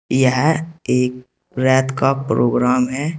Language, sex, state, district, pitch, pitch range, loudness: Hindi, male, Uttar Pradesh, Saharanpur, 130 Hz, 125-140 Hz, -17 LUFS